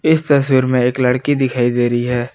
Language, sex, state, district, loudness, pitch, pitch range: Hindi, male, Jharkhand, Palamu, -15 LUFS, 130 Hz, 120-140 Hz